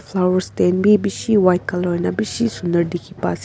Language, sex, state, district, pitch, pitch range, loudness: Nagamese, female, Nagaland, Kohima, 180 Hz, 175-185 Hz, -18 LUFS